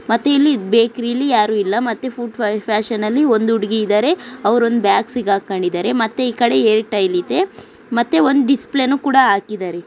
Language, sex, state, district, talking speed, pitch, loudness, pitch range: Kannada, female, Karnataka, Dakshina Kannada, 150 wpm, 230 Hz, -16 LUFS, 210-260 Hz